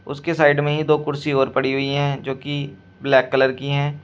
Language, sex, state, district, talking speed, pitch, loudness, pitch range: Hindi, male, Uttar Pradesh, Shamli, 235 wpm, 140 Hz, -20 LUFS, 135-145 Hz